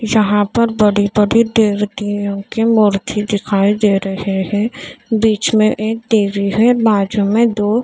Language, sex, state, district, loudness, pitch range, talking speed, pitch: Hindi, female, Maharashtra, Mumbai Suburban, -15 LUFS, 205-225 Hz, 140 wpm, 210 Hz